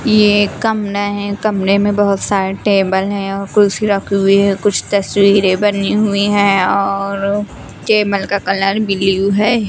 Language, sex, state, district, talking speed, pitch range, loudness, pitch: Hindi, female, Chandigarh, Chandigarh, 155 wpm, 195-205 Hz, -14 LUFS, 200 Hz